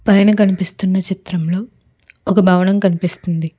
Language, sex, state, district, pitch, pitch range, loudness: Telugu, female, Telangana, Hyderabad, 190 Hz, 180-200 Hz, -16 LUFS